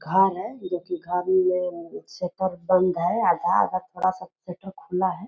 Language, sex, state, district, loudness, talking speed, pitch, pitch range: Hindi, female, Bihar, Purnia, -24 LUFS, 205 wpm, 185 Hz, 180-190 Hz